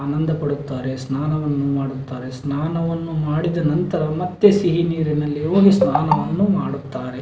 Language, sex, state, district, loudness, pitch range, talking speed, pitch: Kannada, male, Karnataka, Belgaum, -20 LUFS, 140-170 Hz, 110 wpm, 155 Hz